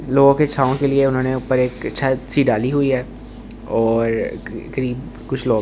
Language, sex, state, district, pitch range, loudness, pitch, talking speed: Hindi, male, Delhi, New Delhi, 125-140 Hz, -19 LUFS, 130 Hz, 190 wpm